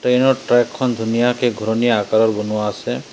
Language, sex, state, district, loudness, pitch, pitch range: Assamese, male, Assam, Sonitpur, -18 LUFS, 120 Hz, 110-125 Hz